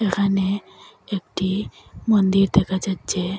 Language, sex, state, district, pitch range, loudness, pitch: Bengali, female, Assam, Hailakandi, 190-200 Hz, -22 LUFS, 195 Hz